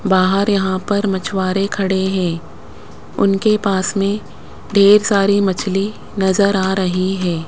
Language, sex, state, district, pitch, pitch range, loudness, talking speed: Hindi, female, Rajasthan, Jaipur, 195 Hz, 190-200 Hz, -16 LUFS, 130 wpm